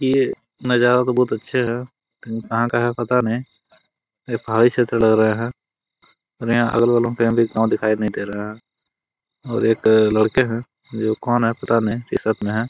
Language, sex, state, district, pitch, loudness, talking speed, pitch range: Hindi, male, Jharkhand, Jamtara, 115 Hz, -19 LUFS, 200 wpm, 110-120 Hz